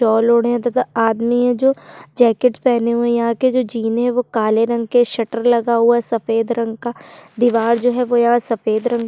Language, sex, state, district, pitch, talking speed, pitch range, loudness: Hindi, female, Chhattisgarh, Sukma, 235 Hz, 230 wpm, 230-245 Hz, -17 LUFS